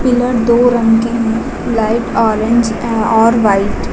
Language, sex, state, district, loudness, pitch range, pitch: Hindi, female, Uttar Pradesh, Lucknow, -13 LUFS, 225-240 Hz, 230 Hz